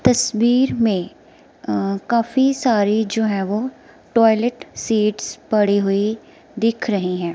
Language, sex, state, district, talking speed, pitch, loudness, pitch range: Hindi, female, Himachal Pradesh, Shimla, 120 wpm, 220 Hz, -19 LUFS, 200-235 Hz